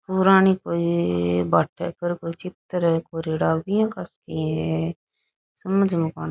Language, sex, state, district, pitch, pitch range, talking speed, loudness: Rajasthani, female, Rajasthan, Churu, 170 Hz, 155-185 Hz, 145 wpm, -23 LUFS